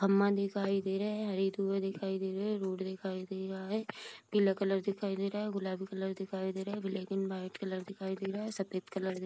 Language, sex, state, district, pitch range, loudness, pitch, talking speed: Hindi, female, Bihar, Vaishali, 190-200 Hz, -36 LUFS, 195 Hz, 240 wpm